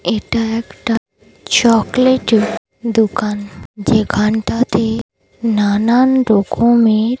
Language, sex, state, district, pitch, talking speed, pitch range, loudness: Bengali, female, Odisha, Malkangiri, 225 Hz, 75 wpm, 215-235 Hz, -15 LUFS